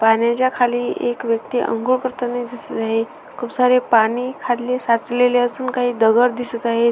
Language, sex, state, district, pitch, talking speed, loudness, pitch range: Marathi, female, Maharashtra, Sindhudurg, 245 Hz, 165 wpm, -19 LUFS, 235-250 Hz